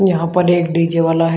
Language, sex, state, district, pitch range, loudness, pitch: Hindi, male, Uttar Pradesh, Shamli, 165-175 Hz, -15 LUFS, 170 Hz